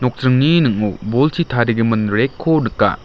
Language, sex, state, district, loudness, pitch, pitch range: Garo, male, Meghalaya, West Garo Hills, -16 LUFS, 125 Hz, 110-145 Hz